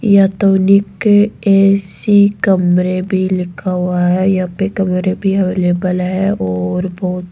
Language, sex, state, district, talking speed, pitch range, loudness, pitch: Hindi, female, Rajasthan, Jaipur, 125 wpm, 180-195 Hz, -14 LUFS, 185 Hz